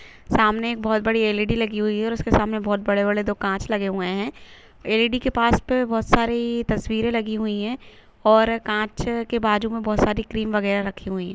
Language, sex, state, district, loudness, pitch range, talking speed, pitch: Hindi, female, Chhattisgarh, Rajnandgaon, -22 LUFS, 210-230 Hz, 225 wpm, 215 Hz